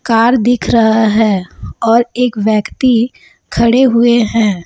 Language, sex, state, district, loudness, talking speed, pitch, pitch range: Hindi, female, Chhattisgarh, Raipur, -12 LUFS, 130 wpm, 230 Hz, 220-240 Hz